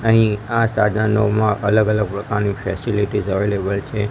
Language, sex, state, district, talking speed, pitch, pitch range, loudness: Gujarati, male, Gujarat, Gandhinagar, 130 wpm, 105 Hz, 100-110 Hz, -19 LUFS